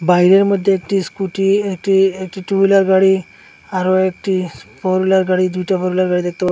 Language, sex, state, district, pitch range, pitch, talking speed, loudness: Bengali, male, Assam, Hailakandi, 185-195 Hz, 190 Hz, 185 wpm, -15 LUFS